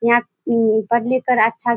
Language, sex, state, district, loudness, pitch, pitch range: Hindi, female, Bihar, Kishanganj, -18 LUFS, 235 Hz, 225-240 Hz